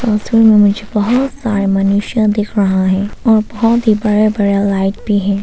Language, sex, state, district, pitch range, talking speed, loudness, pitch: Hindi, female, Arunachal Pradesh, Papum Pare, 200-220 Hz, 155 wpm, -13 LUFS, 210 Hz